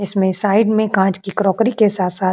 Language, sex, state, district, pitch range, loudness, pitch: Hindi, female, Uttar Pradesh, Jyotiba Phule Nagar, 190-215 Hz, -16 LUFS, 195 Hz